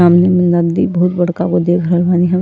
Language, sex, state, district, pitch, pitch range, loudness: Bhojpuri, female, Uttar Pradesh, Ghazipur, 175 Hz, 175-180 Hz, -13 LUFS